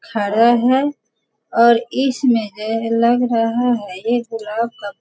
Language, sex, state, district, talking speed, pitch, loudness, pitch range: Hindi, female, Bihar, Sitamarhi, 145 wpm, 230 Hz, -17 LUFS, 225-245 Hz